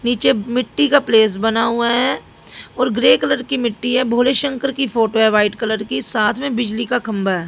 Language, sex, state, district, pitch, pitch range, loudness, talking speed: Hindi, female, Haryana, Jhajjar, 235 Hz, 220-255 Hz, -17 LUFS, 215 wpm